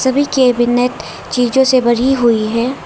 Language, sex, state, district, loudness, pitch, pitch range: Hindi, female, Arunachal Pradesh, Lower Dibang Valley, -13 LUFS, 250 Hz, 240-260 Hz